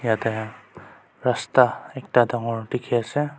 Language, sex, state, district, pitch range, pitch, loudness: Nagamese, male, Nagaland, Kohima, 115-125 Hz, 120 Hz, -23 LUFS